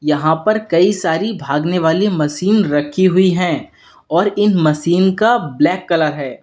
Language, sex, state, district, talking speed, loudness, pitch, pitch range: Hindi, male, Uttar Pradesh, Lalitpur, 160 wpm, -15 LUFS, 175 Hz, 155-195 Hz